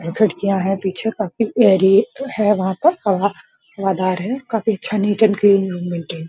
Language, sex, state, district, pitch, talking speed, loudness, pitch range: Hindi, female, Bihar, Purnia, 200 Hz, 135 wpm, -18 LUFS, 190-220 Hz